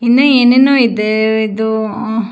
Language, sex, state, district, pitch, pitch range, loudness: Kannada, female, Karnataka, Shimoga, 220 Hz, 220-245 Hz, -12 LUFS